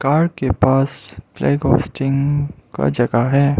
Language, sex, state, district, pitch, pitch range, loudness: Hindi, male, Arunachal Pradesh, Lower Dibang Valley, 135 Hz, 120-140 Hz, -18 LUFS